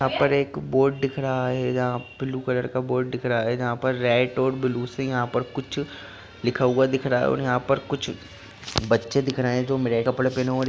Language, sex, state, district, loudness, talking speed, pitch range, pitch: Hindi, male, Bihar, Jahanabad, -24 LUFS, 245 wpm, 120-130 Hz, 125 Hz